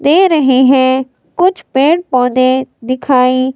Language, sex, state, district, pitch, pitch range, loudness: Hindi, female, Himachal Pradesh, Shimla, 260 Hz, 255-305 Hz, -11 LUFS